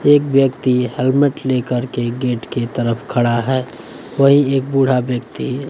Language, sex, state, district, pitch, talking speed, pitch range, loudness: Hindi, male, Bihar, West Champaran, 130 Hz, 145 wpm, 125-135 Hz, -17 LUFS